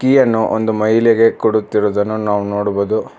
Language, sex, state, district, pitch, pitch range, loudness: Kannada, male, Karnataka, Bangalore, 110 Hz, 105-115 Hz, -15 LUFS